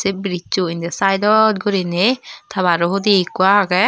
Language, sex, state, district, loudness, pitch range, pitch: Chakma, female, Tripura, Dhalai, -17 LUFS, 180-205 Hz, 195 Hz